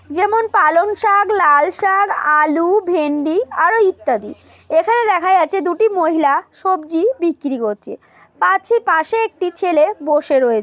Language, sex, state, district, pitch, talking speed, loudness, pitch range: Bengali, female, West Bengal, Malda, 350 Hz, 125 wpm, -15 LUFS, 300-405 Hz